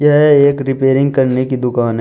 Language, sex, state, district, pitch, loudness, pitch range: Hindi, male, Uttar Pradesh, Shamli, 135 Hz, -13 LUFS, 130-140 Hz